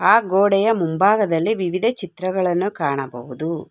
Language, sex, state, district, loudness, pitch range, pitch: Kannada, female, Karnataka, Bangalore, -19 LUFS, 165-200 Hz, 185 Hz